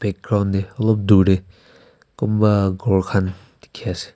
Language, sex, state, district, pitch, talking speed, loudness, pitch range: Nagamese, male, Nagaland, Kohima, 100 Hz, 145 wpm, -19 LUFS, 95-105 Hz